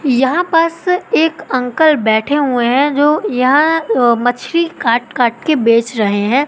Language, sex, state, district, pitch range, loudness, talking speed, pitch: Hindi, female, Madhya Pradesh, Katni, 240-315 Hz, -13 LUFS, 150 wpm, 265 Hz